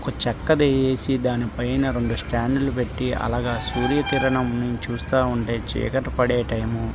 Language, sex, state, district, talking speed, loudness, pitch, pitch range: Telugu, male, Andhra Pradesh, Visakhapatnam, 155 wpm, -23 LUFS, 125 Hz, 120-130 Hz